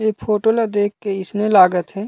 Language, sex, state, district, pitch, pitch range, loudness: Chhattisgarhi, male, Chhattisgarh, Raigarh, 205 Hz, 195-215 Hz, -17 LUFS